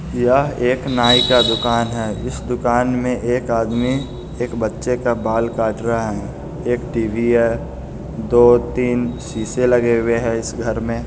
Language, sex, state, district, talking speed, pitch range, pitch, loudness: Hindi, male, Bihar, Muzaffarpur, 165 wpm, 115-125 Hz, 120 Hz, -18 LUFS